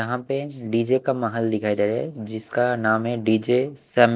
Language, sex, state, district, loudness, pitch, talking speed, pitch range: Hindi, male, Punjab, Kapurthala, -23 LUFS, 115 Hz, 200 wpm, 110-125 Hz